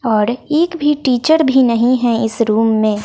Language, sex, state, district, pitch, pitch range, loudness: Hindi, female, Bihar, West Champaran, 240 Hz, 225-290 Hz, -14 LUFS